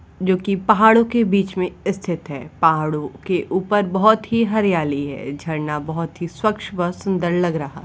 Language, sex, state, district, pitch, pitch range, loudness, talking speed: Hindi, female, Uttar Pradesh, Varanasi, 180 Hz, 160-205 Hz, -19 LUFS, 185 wpm